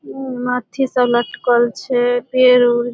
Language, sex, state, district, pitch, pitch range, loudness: Maithili, female, Bihar, Supaul, 245 Hz, 240-250 Hz, -16 LUFS